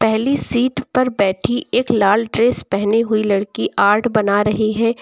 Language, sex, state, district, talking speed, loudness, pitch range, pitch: Hindi, female, Uttar Pradesh, Lucknow, 170 wpm, -17 LUFS, 205-240 Hz, 220 Hz